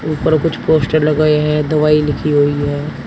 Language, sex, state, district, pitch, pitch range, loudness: Hindi, male, Uttar Pradesh, Shamli, 150 Hz, 145-155 Hz, -14 LUFS